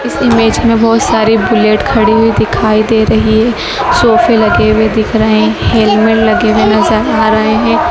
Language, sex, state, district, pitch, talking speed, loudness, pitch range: Hindi, female, Madhya Pradesh, Dhar, 225 Hz, 190 wpm, -9 LUFS, 220-230 Hz